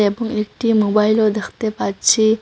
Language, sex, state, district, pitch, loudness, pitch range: Bengali, female, Assam, Hailakandi, 215 Hz, -17 LUFS, 210-225 Hz